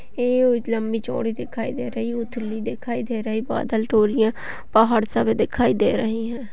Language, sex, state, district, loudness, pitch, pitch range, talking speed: Hindi, female, Uttar Pradesh, Etah, -22 LUFS, 230 Hz, 220-240 Hz, 165 wpm